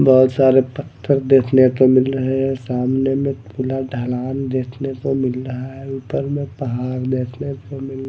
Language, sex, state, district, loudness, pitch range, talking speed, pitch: Hindi, male, Odisha, Malkangiri, -19 LUFS, 130-135 Hz, 170 wpm, 130 Hz